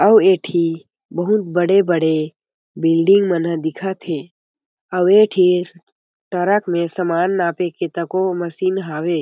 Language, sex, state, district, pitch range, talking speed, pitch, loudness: Chhattisgarhi, male, Chhattisgarh, Jashpur, 170-190 Hz, 135 wpm, 180 Hz, -17 LUFS